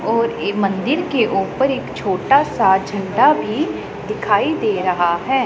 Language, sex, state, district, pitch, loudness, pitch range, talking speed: Hindi, female, Punjab, Pathankot, 230 Hz, -18 LUFS, 195-270 Hz, 155 wpm